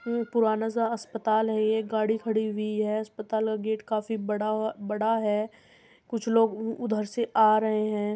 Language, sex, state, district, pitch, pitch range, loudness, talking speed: Hindi, female, Uttar Pradesh, Muzaffarnagar, 220 Hz, 215-225 Hz, -27 LUFS, 175 wpm